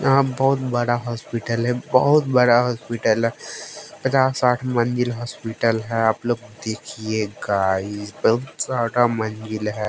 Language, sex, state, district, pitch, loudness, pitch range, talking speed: Hindi, male, Haryana, Jhajjar, 120 Hz, -21 LUFS, 110-125 Hz, 135 wpm